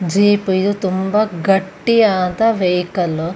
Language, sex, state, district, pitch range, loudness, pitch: Kannada, female, Karnataka, Shimoga, 180-205 Hz, -16 LUFS, 190 Hz